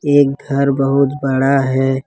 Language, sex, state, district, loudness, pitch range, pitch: Hindi, male, Jharkhand, Ranchi, -15 LUFS, 135-140 Hz, 135 Hz